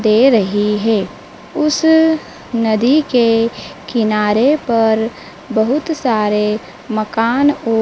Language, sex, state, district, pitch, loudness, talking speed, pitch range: Hindi, female, Madhya Pradesh, Dhar, 230 Hz, -15 LUFS, 90 wpm, 215-280 Hz